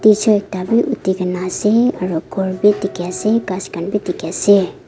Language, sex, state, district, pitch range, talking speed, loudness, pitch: Nagamese, female, Nagaland, Dimapur, 185-215 Hz, 160 wpm, -17 LUFS, 195 Hz